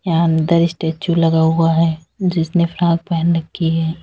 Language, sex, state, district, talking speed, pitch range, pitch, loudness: Hindi, female, Uttar Pradesh, Lalitpur, 165 wpm, 165-170 Hz, 165 Hz, -16 LUFS